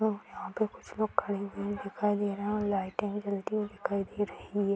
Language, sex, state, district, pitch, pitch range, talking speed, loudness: Hindi, female, Bihar, Gopalganj, 205 Hz, 200-210 Hz, 250 wpm, -33 LUFS